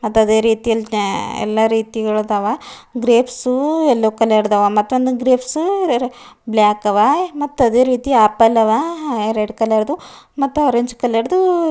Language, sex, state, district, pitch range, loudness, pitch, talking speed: Kannada, female, Karnataka, Bidar, 220-265 Hz, -16 LUFS, 235 Hz, 135 wpm